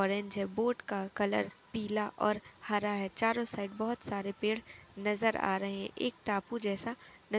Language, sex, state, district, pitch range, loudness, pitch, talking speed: Hindi, female, Uttar Pradesh, Etah, 200-225 Hz, -35 LUFS, 210 Hz, 185 wpm